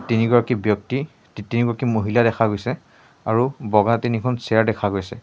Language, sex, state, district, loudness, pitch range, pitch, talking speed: Assamese, male, Assam, Sonitpur, -20 LUFS, 110-120 Hz, 115 Hz, 140 wpm